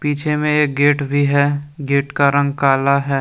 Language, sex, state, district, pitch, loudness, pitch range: Hindi, male, Jharkhand, Deoghar, 140 Hz, -16 LUFS, 140-145 Hz